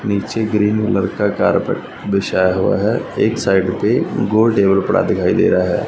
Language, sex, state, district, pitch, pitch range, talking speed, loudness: Hindi, male, Punjab, Fazilka, 100 Hz, 95-110 Hz, 185 wpm, -16 LUFS